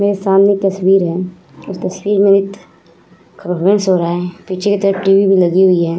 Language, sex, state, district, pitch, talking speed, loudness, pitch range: Hindi, female, Uttar Pradesh, Budaun, 195 Hz, 170 wpm, -13 LUFS, 180-195 Hz